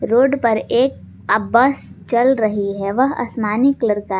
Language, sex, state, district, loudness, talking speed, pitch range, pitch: Hindi, female, Jharkhand, Garhwa, -17 LUFS, 170 wpm, 210-260 Hz, 235 Hz